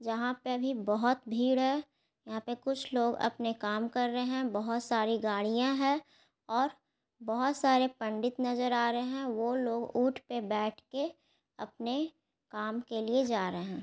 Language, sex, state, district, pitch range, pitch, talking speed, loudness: Hindi, female, Bihar, Gaya, 225-265 Hz, 245 Hz, 175 wpm, -32 LUFS